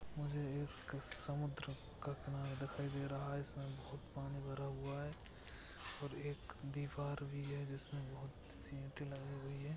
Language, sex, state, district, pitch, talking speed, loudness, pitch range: Hindi, male, Maharashtra, Sindhudurg, 140 Hz, 165 wpm, -47 LUFS, 135-145 Hz